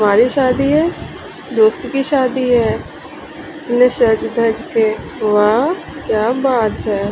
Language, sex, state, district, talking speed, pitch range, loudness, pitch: Hindi, female, Bihar, Patna, 110 wpm, 220-270 Hz, -15 LUFS, 245 Hz